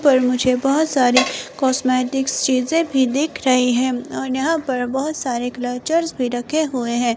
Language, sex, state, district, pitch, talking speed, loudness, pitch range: Hindi, female, Himachal Pradesh, Shimla, 260 Hz, 165 wpm, -19 LUFS, 250-280 Hz